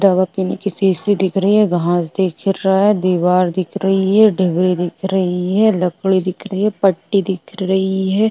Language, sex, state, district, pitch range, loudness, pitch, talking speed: Hindi, female, Uttar Pradesh, Budaun, 185-200 Hz, -16 LUFS, 190 Hz, 195 wpm